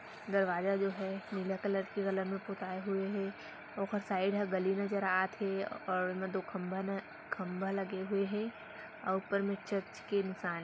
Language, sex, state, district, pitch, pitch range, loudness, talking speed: Hindi, female, Chhattisgarh, Raigarh, 195 Hz, 190-200 Hz, -36 LUFS, 180 wpm